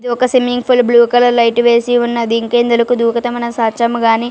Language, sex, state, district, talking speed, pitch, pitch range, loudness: Telugu, female, Telangana, Karimnagar, 165 wpm, 240 Hz, 235-245 Hz, -13 LUFS